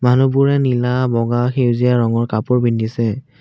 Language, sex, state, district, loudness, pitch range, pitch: Assamese, male, Assam, Kamrup Metropolitan, -16 LUFS, 115-130 Hz, 125 Hz